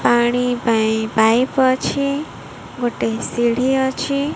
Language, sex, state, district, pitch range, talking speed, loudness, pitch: Odia, female, Odisha, Malkangiri, 235-265 Hz, 95 wpm, -18 LUFS, 245 Hz